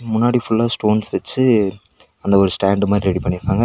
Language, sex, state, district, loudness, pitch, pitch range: Tamil, male, Tamil Nadu, Nilgiris, -17 LUFS, 105 Hz, 95-115 Hz